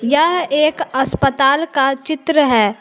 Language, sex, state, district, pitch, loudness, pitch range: Hindi, female, Jharkhand, Palamu, 275 Hz, -15 LUFS, 265-310 Hz